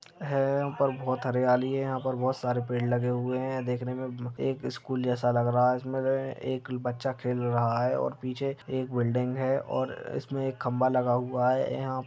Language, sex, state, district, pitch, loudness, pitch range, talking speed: Hindi, male, Uttar Pradesh, Deoria, 125 Hz, -29 LUFS, 125-130 Hz, 205 wpm